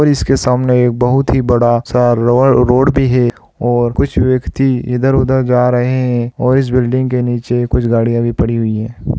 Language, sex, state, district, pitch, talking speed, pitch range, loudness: Hindi, male, Chhattisgarh, Raigarh, 125 Hz, 185 wpm, 120-130 Hz, -13 LUFS